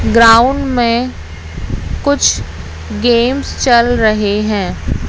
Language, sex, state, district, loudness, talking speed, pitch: Hindi, female, Madhya Pradesh, Katni, -13 LUFS, 80 wpm, 210 Hz